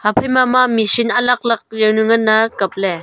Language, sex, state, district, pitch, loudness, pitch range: Wancho, female, Arunachal Pradesh, Longding, 225 Hz, -14 LUFS, 215-245 Hz